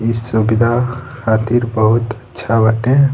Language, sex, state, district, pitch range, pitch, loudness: Bhojpuri, male, Bihar, East Champaran, 110-120 Hz, 115 Hz, -15 LUFS